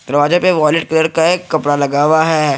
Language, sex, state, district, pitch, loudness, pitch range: Hindi, male, Jharkhand, Garhwa, 155 Hz, -13 LUFS, 145-165 Hz